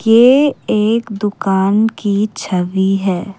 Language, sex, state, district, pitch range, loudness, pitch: Hindi, female, Assam, Kamrup Metropolitan, 195-225 Hz, -14 LUFS, 205 Hz